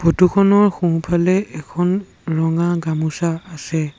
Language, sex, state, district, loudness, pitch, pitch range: Assamese, male, Assam, Sonitpur, -18 LUFS, 170 Hz, 160-180 Hz